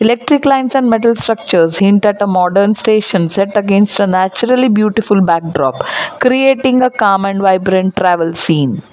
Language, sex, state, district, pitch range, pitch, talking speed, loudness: English, female, Gujarat, Valsad, 185-230 Hz, 200 Hz, 155 wpm, -12 LUFS